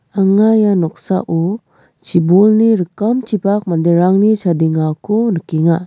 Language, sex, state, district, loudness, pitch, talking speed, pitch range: Garo, female, Meghalaya, West Garo Hills, -14 LUFS, 185 Hz, 80 wpm, 165-210 Hz